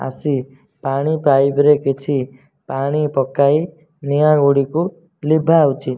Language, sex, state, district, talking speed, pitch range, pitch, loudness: Odia, male, Odisha, Nuapada, 100 wpm, 135-155 Hz, 145 Hz, -16 LUFS